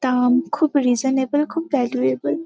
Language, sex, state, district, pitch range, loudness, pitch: Bengali, female, West Bengal, Kolkata, 250-295 Hz, -20 LUFS, 265 Hz